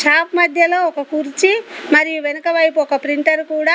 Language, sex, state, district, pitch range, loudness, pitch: Telugu, female, Telangana, Komaram Bheem, 300-340 Hz, -15 LUFS, 315 Hz